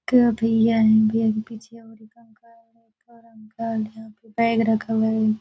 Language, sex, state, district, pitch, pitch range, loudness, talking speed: Hindi, female, Chhattisgarh, Balrampur, 225 Hz, 220-230 Hz, -21 LUFS, 80 wpm